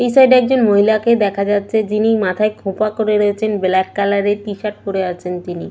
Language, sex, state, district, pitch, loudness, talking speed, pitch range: Bengali, female, West Bengal, Malda, 205 Hz, -16 LUFS, 220 wpm, 195-220 Hz